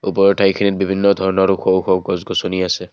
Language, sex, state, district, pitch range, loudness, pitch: Assamese, male, Assam, Kamrup Metropolitan, 95-100 Hz, -16 LUFS, 95 Hz